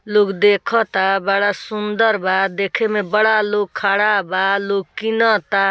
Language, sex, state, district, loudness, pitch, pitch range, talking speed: Bhojpuri, female, Bihar, East Champaran, -17 LUFS, 205 Hz, 195-215 Hz, 135 wpm